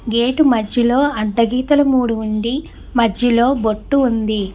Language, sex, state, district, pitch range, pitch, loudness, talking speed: Telugu, male, Telangana, Hyderabad, 220-260 Hz, 235 Hz, -16 LUFS, 120 wpm